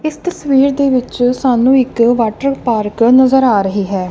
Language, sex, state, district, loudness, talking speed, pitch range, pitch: Punjabi, female, Punjab, Kapurthala, -13 LUFS, 160 wpm, 230-270 Hz, 255 Hz